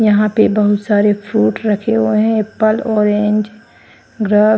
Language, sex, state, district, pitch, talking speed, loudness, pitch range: Hindi, female, Haryana, Charkhi Dadri, 215 Hz, 145 wpm, -14 LUFS, 210-220 Hz